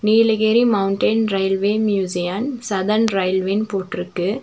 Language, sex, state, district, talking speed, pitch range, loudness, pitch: Tamil, female, Tamil Nadu, Nilgiris, 95 wpm, 190-220 Hz, -19 LUFS, 205 Hz